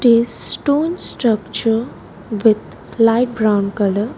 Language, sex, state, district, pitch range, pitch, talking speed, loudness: English, female, Gujarat, Valsad, 210-240 Hz, 225 Hz, 100 wpm, -16 LUFS